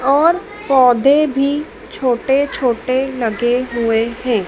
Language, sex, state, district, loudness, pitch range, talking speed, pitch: Hindi, female, Madhya Pradesh, Dhar, -16 LUFS, 240-280 Hz, 105 wpm, 255 Hz